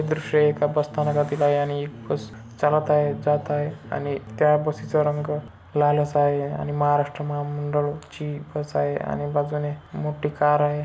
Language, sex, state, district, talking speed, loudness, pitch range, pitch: Marathi, male, Maharashtra, Solapur, 175 wpm, -24 LUFS, 145-150 Hz, 145 Hz